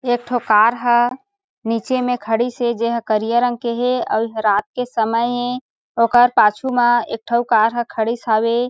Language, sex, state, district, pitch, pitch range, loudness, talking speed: Chhattisgarhi, female, Chhattisgarh, Sarguja, 240 Hz, 225-245 Hz, -18 LUFS, 200 wpm